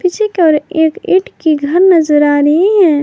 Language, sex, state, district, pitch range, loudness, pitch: Hindi, female, Jharkhand, Garhwa, 300-375 Hz, -11 LUFS, 335 Hz